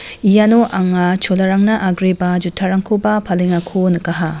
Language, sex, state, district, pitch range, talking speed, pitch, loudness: Garo, female, Meghalaya, West Garo Hills, 180-200 Hz, 95 wpm, 185 Hz, -15 LUFS